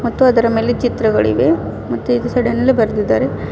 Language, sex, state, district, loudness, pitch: Kannada, female, Karnataka, Bidar, -15 LUFS, 225 Hz